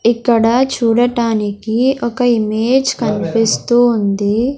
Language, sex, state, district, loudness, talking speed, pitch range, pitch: Telugu, female, Andhra Pradesh, Sri Satya Sai, -14 LUFS, 80 wpm, 220-245 Hz, 235 Hz